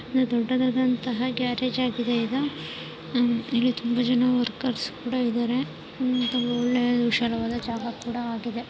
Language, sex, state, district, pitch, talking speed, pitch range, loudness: Kannada, female, Karnataka, Chamarajanagar, 245 Hz, 75 wpm, 235-250 Hz, -25 LUFS